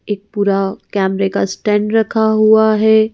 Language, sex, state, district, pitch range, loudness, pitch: Hindi, female, Madhya Pradesh, Bhopal, 195-220 Hz, -14 LUFS, 210 Hz